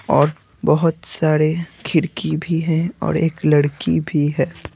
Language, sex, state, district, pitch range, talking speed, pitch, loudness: Hindi, male, Bihar, Patna, 150-165 Hz, 140 wpm, 155 Hz, -19 LUFS